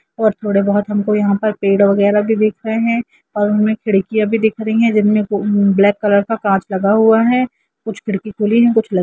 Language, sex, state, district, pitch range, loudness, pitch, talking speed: Hindi, female, Jharkhand, Jamtara, 200-220 Hz, -15 LUFS, 210 Hz, 220 wpm